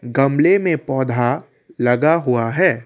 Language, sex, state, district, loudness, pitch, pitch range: Hindi, male, Assam, Kamrup Metropolitan, -17 LUFS, 135 Hz, 120-160 Hz